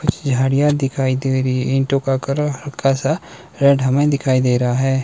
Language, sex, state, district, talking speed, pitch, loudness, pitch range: Hindi, male, Himachal Pradesh, Shimla, 200 wpm, 135 Hz, -18 LUFS, 130-140 Hz